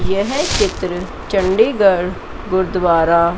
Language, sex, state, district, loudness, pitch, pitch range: Hindi, female, Chandigarh, Chandigarh, -16 LUFS, 185 Hz, 175-200 Hz